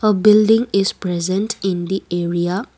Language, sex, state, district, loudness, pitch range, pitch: English, female, Assam, Kamrup Metropolitan, -17 LUFS, 180-215 Hz, 195 Hz